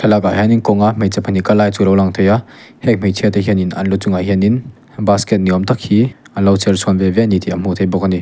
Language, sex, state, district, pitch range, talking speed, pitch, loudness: Mizo, male, Mizoram, Aizawl, 95-105 Hz, 290 wpm, 100 Hz, -14 LUFS